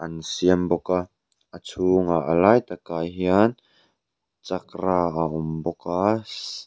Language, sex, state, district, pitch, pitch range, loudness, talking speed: Mizo, male, Mizoram, Aizawl, 90 Hz, 85-95 Hz, -23 LUFS, 145 wpm